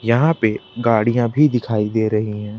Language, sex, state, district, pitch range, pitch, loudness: Hindi, male, Madhya Pradesh, Bhopal, 110-120 Hz, 115 Hz, -18 LUFS